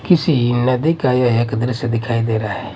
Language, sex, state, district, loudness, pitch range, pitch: Hindi, male, Odisha, Malkangiri, -17 LUFS, 115-130 Hz, 120 Hz